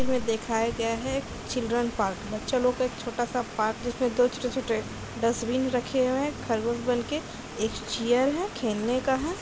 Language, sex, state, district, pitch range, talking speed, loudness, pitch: Hindi, female, Bihar, East Champaran, 230-255 Hz, 185 wpm, -28 LUFS, 245 Hz